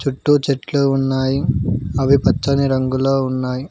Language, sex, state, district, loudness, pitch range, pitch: Telugu, male, Telangana, Mahabubabad, -17 LUFS, 130-140 Hz, 135 Hz